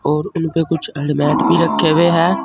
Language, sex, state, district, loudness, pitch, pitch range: Hindi, male, Uttar Pradesh, Saharanpur, -16 LUFS, 160 Hz, 150-165 Hz